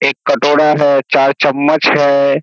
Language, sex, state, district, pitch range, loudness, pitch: Hindi, male, Bihar, Kishanganj, 140-145 Hz, -11 LUFS, 145 Hz